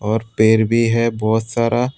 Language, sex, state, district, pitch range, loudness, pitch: Hindi, male, Tripura, West Tripura, 110-115 Hz, -17 LUFS, 115 Hz